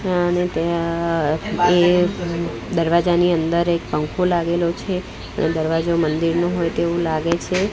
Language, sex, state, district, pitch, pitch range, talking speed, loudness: Gujarati, female, Gujarat, Gandhinagar, 170 Hz, 165-175 Hz, 125 wpm, -20 LUFS